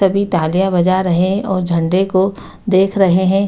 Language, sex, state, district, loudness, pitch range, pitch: Hindi, female, Bihar, Gaya, -15 LUFS, 180-195 Hz, 190 Hz